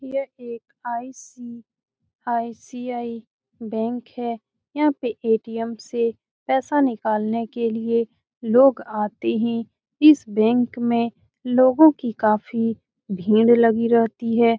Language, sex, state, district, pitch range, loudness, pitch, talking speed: Hindi, female, Bihar, Saran, 225-245 Hz, -21 LUFS, 235 Hz, 105 wpm